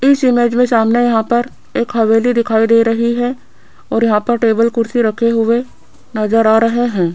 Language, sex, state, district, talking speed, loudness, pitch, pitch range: Hindi, female, Rajasthan, Jaipur, 195 wpm, -14 LUFS, 230 Hz, 225-240 Hz